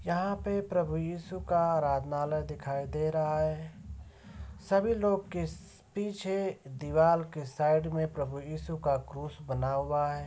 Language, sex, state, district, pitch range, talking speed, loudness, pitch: Hindi, male, Uttar Pradesh, Ghazipur, 145-175 Hz, 145 wpm, -32 LUFS, 155 Hz